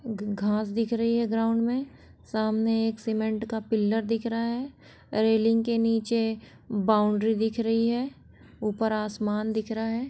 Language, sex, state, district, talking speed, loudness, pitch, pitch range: Hindi, female, Jharkhand, Sahebganj, 155 wpm, -27 LUFS, 225 Hz, 220-230 Hz